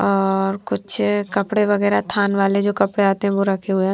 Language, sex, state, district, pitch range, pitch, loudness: Hindi, female, Punjab, Fazilka, 195-205 Hz, 200 Hz, -19 LUFS